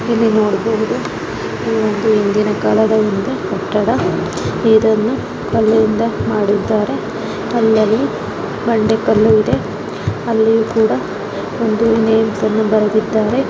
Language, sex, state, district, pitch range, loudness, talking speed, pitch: Kannada, female, Karnataka, Dakshina Kannada, 215-225 Hz, -15 LUFS, 80 wpm, 220 Hz